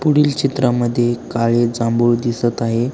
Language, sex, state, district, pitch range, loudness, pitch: Marathi, male, Maharashtra, Aurangabad, 120-125 Hz, -17 LUFS, 120 Hz